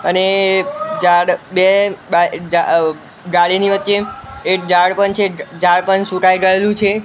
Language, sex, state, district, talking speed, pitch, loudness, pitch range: Gujarati, male, Gujarat, Gandhinagar, 155 wpm, 190 Hz, -14 LUFS, 180-200 Hz